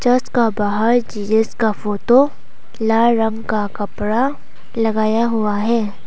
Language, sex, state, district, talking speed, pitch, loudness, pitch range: Hindi, female, Arunachal Pradesh, Papum Pare, 130 wpm, 225 Hz, -17 LUFS, 210-235 Hz